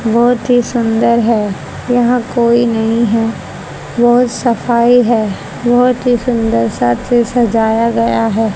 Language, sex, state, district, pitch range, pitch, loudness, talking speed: Hindi, female, Haryana, Jhajjar, 225-240 Hz, 235 Hz, -13 LUFS, 125 wpm